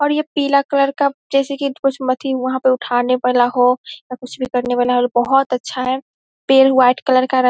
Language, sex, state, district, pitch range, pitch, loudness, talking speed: Hindi, female, Bihar, Vaishali, 250-275 Hz, 255 Hz, -16 LUFS, 240 wpm